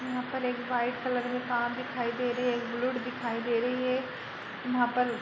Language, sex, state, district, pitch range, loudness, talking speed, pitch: Hindi, female, Uttar Pradesh, Jalaun, 240-250 Hz, -31 LUFS, 230 wpm, 245 Hz